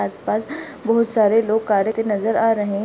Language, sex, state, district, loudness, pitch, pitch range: Hindi, female, Uttar Pradesh, Jalaun, -19 LUFS, 220 Hz, 210-225 Hz